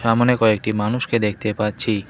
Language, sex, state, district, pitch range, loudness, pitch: Bengali, male, West Bengal, Cooch Behar, 105-115 Hz, -19 LUFS, 110 Hz